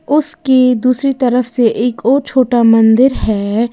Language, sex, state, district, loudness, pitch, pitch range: Hindi, female, Uttar Pradesh, Lalitpur, -12 LUFS, 250 Hz, 230-265 Hz